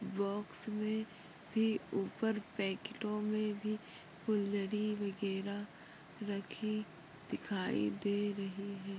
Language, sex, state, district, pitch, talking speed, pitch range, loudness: Hindi, female, Maharashtra, Dhule, 205 Hz, 85 wpm, 195-215 Hz, -39 LUFS